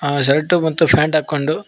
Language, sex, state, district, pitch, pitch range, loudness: Kannada, male, Karnataka, Koppal, 155 Hz, 145-160 Hz, -16 LUFS